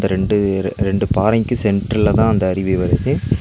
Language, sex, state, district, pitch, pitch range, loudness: Tamil, male, Tamil Nadu, Nilgiris, 100 Hz, 95-110 Hz, -17 LUFS